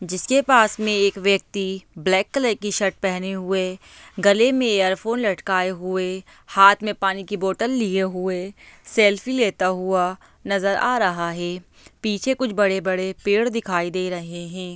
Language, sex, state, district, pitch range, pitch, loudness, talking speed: Hindi, female, Bihar, Lakhisarai, 185-210 Hz, 195 Hz, -21 LUFS, 160 wpm